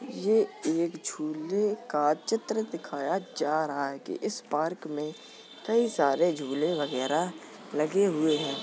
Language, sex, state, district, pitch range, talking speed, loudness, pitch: Hindi, male, Uttar Pradesh, Jalaun, 150-200 Hz, 140 wpm, -29 LUFS, 155 Hz